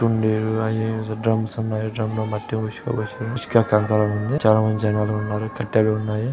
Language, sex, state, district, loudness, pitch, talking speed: Telugu, male, Andhra Pradesh, Srikakulam, -22 LUFS, 110 Hz, 150 wpm